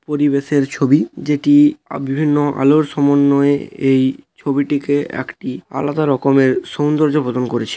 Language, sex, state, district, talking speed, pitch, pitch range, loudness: Bengali, male, West Bengal, Paschim Medinipur, 110 wpm, 140 Hz, 135-150 Hz, -16 LUFS